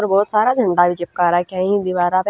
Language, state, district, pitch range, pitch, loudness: Haryanvi, Haryana, Rohtak, 175-200 Hz, 185 Hz, -17 LUFS